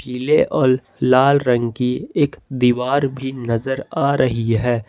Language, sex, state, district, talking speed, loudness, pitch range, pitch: Hindi, male, Jharkhand, Ranchi, 145 wpm, -18 LUFS, 125-135 Hz, 130 Hz